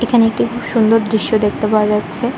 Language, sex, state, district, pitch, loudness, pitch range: Bengali, male, West Bengal, Kolkata, 220 Hz, -15 LUFS, 210-230 Hz